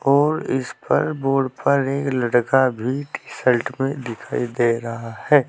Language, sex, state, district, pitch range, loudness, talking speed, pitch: Hindi, male, Uttar Pradesh, Saharanpur, 120-140 Hz, -21 LUFS, 155 wpm, 130 Hz